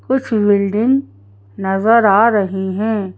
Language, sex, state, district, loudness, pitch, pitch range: Hindi, female, Madhya Pradesh, Bhopal, -15 LUFS, 205 Hz, 190-230 Hz